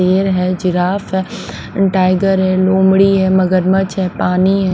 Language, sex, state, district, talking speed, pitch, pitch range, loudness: Hindi, female, Punjab, Pathankot, 150 wpm, 190 Hz, 185-190 Hz, -14 LUFS